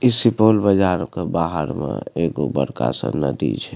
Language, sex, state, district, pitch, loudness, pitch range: Maithili, male, Bihar, Supaul, 80 Hz, -19 LUFS, 70-100 Hz